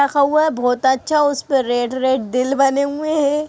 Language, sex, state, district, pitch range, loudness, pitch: Hindi, female, Chhattisgarh, Kabirdham, 260-295 Hz, -17 LUFS, 275 Hz